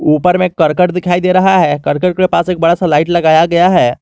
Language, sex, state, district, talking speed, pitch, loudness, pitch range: Hindi, male, Jharkhand, Garhwa, 255 wpm, 180 Hz, -11 LUFS, 160-180 Hz